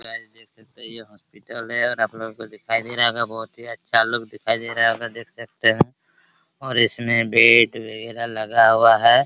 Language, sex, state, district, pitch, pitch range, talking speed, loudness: Hindi, male, Bihar, Araria, 115 Hz, 110-115 Hz, 225 wpm, -19 LUFS